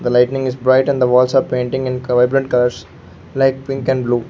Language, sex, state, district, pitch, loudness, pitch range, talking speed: English, male, Arunachal Pradesh, Lower Dibang Valley, 130 Hz, -16 LUFS, 125-135 Hz, 225 wpm